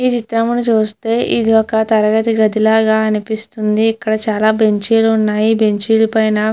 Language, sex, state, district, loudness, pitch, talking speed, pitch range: Telugu, female, Andhra Pradesh, Chittoor, -14 LUFS, 220 Hz, 145 wpm, 215-225 Hz